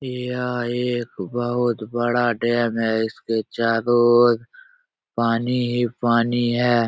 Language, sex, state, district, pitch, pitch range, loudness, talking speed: Hindi, male, Bihar, Jahanabad, 120 Hz, 115-120 Hz, -21 LUFS, 115 wpm